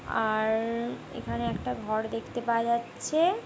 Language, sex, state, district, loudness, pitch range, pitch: Bengali, female, West Bengal, Jhargram, -30 LUFS, 215-235 Hz, 230 Hz